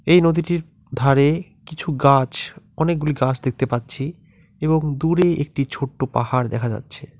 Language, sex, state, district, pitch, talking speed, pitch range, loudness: Bengali, male, West Bengal, Alipurduar, 140 Hz, 135 wpm, 130-160 Hz, -20 LUFS